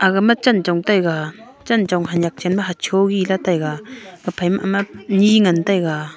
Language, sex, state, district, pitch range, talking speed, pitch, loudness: Wancho, female, Arunachal Pradesh, Longding, 170-200 Hz, 175 wpm, 190 Hz, -17 LUFS